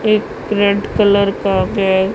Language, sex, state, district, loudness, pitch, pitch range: Hindi, female, Punjab, Pathankot, -15 LUFS, 200 Hz, 195-210 Hz